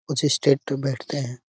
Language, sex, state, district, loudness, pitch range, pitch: Hindi, male, Uttar Pradesh, Ghazipur, -23 LUFS, 130-145 Hz, 140 Hz